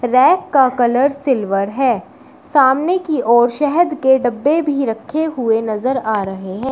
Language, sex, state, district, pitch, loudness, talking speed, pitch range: Hindi, female, Uttar Pradesh, Shamli, 260 Hz, -16 LUFS, 160 wpm, 230-290 Hz